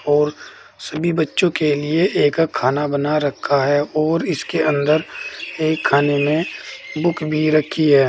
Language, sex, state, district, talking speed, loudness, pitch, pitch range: Hindi, male, Uttar Pradesh, Saharanpur, 150 wpm, -18 LUFS, 155 Hz, 145-160 Hz